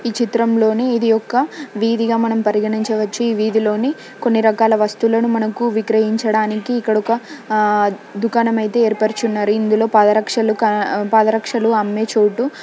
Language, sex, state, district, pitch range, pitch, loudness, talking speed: Telugu, female, Telangana, Nalgonda, 215-230 Hz, 220 Hz, -17 LUFS, 125 wpm